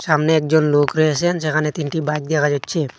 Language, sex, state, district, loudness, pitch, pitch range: Bengali, male, Assam, Hailakandi, -18 LUFS, 155 Hz, 150-160 Hz